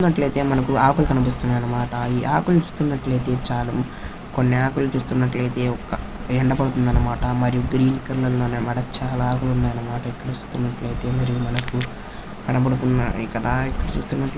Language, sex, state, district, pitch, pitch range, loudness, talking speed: Telugu, male, Andhra Pradesh, Chittoor, 125 Hz, 120-130 Hz, -22 LUFS, 140 wpm